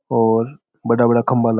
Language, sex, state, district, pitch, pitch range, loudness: Rajasthani, male, Rajasthan, Churu, 115 Hz, 115-120 Hz, -17 LUFS